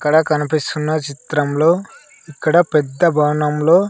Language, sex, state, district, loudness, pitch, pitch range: Telugu, male, Andhra Pradesh, Sri Satya Sai, -17 LUFS, 155 Hz, 150-165 Hz